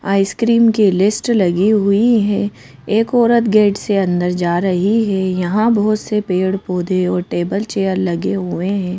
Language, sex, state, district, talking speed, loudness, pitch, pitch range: Hindi, female, Madhya Pradesh, Bhopal, 165 wpm, -15 LUFS, 195 Hz, 185-215 Hz